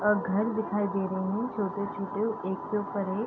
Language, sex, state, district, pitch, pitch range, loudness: Hindi, female, Bihar, East Champaran, 200 Hz, 195-210 Hz, -30 LUFS